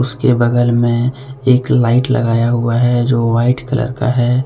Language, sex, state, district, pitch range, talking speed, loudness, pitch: Hindi, male, Jharkhand, Deoghar, 120-125 Hz, 175 wpm, -14 LUFS, 125 Hz